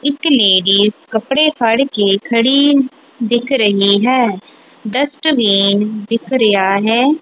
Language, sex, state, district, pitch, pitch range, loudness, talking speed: Punjabi, female, Punjab, Kapurthala, 230 Hz, 205-275 Hz, -13 LUFS, 115 wpm